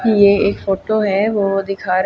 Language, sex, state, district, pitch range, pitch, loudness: Hindi, female, Haryana, Jhajjar, 195-205 Hz, 200 Hz, -16 LUFS